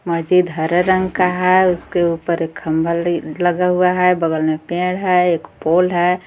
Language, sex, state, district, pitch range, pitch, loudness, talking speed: Hindi, female, Jharkhand, Garhwa, 165-180 Hz, 175 Hz, -17 LUFS, 180 wpm